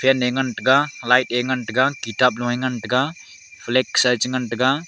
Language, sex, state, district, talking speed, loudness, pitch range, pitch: Wancho, male, Arunachal Pradesh, Longding, 185 wpm, -20 LUFS, 125-130 Hz, 125 Hz